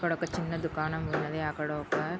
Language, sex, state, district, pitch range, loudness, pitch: Telugu, female, Andhra Pradesh, Guntur, 150-165 Hz, -32 LUFS, 160 Hz